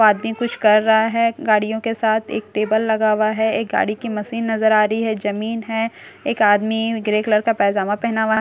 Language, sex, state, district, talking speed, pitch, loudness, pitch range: Hindi, female, Bihar, Katihar, 220 wpm, 220 Hz, -19 LUFS, 215-225 Hz